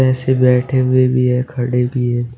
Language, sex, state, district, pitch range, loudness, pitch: Hindi, male, Uttar Pradesh, Shamli, 125-130 Hz, -15 LUFS, 125 Hz